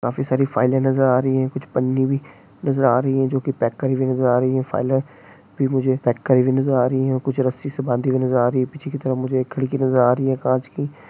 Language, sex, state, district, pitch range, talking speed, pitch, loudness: Hindi, male, West Bengal, Jhargram, 130-135 Hz, 300 wpm, 130 Hz, -20 LUFS